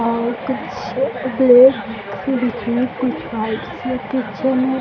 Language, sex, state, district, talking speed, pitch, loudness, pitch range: Hindi, female, Bihar, Jahanabad, 135 wpm, 250 Hz, -18 LUFS, 230-260 Hz